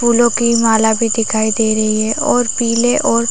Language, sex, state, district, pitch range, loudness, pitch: Hindi, female, Chhattisgarh, Raigarh, 220-235 Hz, -13 LUFS, 230 Hz